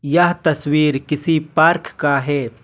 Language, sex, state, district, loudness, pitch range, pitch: Hindi, male, Jharkhand, Ranchi, -17 LUFS, 145-160 Hz, 150 Hz